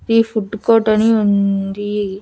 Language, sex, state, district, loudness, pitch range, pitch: Telugu, female, Andhra Pradesh, Annamaya, -16 LUFS, 200-225 Hz, 210 Hz